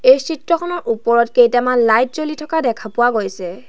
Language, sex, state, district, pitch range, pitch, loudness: Assamese, female, Assam, Sonitpur, 230-305 Hz, 245 Hz, -16 LUFS